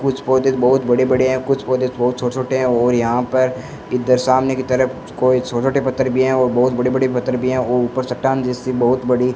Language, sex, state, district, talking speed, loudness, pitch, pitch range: Hindi, female, Rajasthan, Bikaner, 250 wpm, -17 LUFS, 130 Hz, 125-130 Hz